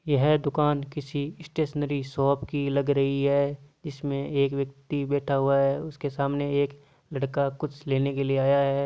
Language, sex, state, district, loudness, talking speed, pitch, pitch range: Marwari, male, Rajasthan, Nagaur, -26 LUFS, 170 wpm, 140 Hz, 140-145 Hz